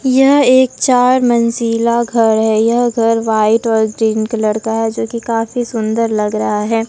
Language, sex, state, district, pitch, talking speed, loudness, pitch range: Hindi, female, Bihar, Katihar, 230 Hz, 175 wpm, -13 LUFS, 220-240 Hz